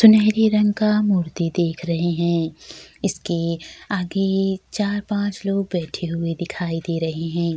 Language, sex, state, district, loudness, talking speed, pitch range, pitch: Hindi, female, Bihar, Kishanganj, -22 LUFS, 145 wpm, 170-205 Hz, 175 Hz